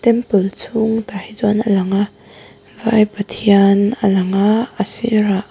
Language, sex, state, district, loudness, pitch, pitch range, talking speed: Mizo, female, Mizoram, Aizawl, -15 LUFS, 210 Hz, 200-220 Hz, 165 wpm